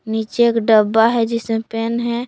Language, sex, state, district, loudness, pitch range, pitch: Hindi, female, Jharkhand, Palamu, -17 LUFS, 225-235 Hz, 230 Hz